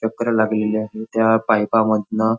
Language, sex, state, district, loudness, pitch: Marathi, male, Maharashtra, Nagpur, -19 LUFS, 110 Hz